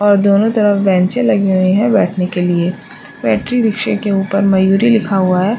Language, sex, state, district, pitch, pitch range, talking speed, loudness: Hindi, female, Uttarakhand, Uttarkashi, 195 Hz, 185-210 Hz, 195 wpm, -13 LUFS